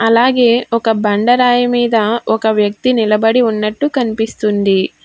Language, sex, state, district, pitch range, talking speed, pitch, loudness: Telugu, female, Telangana, Hyderabad, 215-245 Hz, 120 wpm, 225 Hz, -13 LUFS